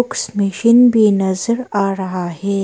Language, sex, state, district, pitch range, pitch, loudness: Hindi, female, Arunachal Pradesh, Papum Pare, 190-225 Hz, 200 Hz, -15 LUFS